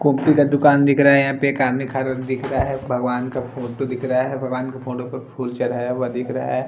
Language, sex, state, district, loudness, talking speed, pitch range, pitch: Hindi, male, Bihar, Patna, -20 LUFS, 270 wpm, 125-135 Hz, 130 Hz